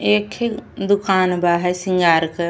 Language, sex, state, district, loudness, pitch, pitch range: Bhojpuri, female, Uttar Pradesh, Ghazipur, -18 LUFS, 180 Hz, 170-190 Hz